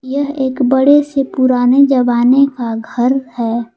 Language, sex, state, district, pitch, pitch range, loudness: Hindi, female, Jharkhand, Palamu, 260 Hz, 245-275 Hz, -13 LUFS